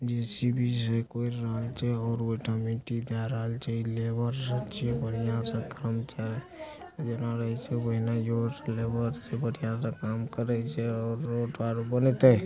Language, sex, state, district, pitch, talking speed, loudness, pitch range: Angika, male, Bihar, Supaul, 115 Hz, 80 wpm, -31 LUFS, 115-120 Hz